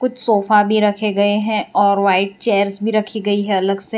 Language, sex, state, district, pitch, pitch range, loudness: Hindi, female, Gujarat, Valsad, 205 Hz, 200-215 Hz, -16 LUFS